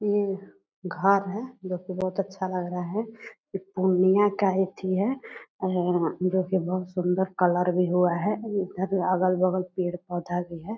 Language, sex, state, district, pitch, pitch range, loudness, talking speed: Hindi, female, Bihar, Purnia, 185 Hz, 180-195 Hz, -26 LUFS, 160 wpm